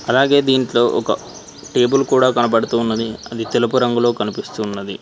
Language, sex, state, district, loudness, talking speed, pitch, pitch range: Telugu, male, Telangana, Mahabubabad, -17 LUFS, 130 wpm, 120 Hz, 115-130 Hz